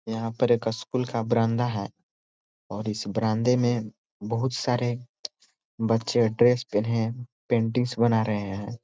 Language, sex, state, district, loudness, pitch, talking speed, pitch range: Hindi, male, Chhattisgarh, Korba, -26 LUFS, 115 Hz, 145 wpm, 110-120 Hz